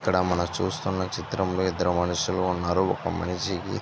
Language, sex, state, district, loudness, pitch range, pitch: Telugu, male, Andhra Pradesh, Visakhapatnam, -26 LUFS, 90-95 Hz, 90 Hz